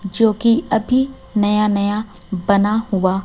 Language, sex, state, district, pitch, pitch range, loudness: Hindi, female, Chhattisgarh, Raipur, 210 Hz, 200-225 Hz, -18 LUFS